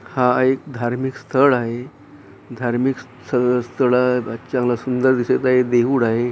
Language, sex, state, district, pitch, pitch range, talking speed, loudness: Marathi, male, Maharashtra, Gondia, 125 Hz, 120-130 Hz, 135 wpm, -19 LUFS